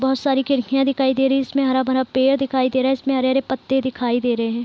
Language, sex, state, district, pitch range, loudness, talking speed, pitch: Hindi, female, Bihar, Sitamarhi, 260-270 Hz, -19 LUFS, 245 wpm, 265 Hz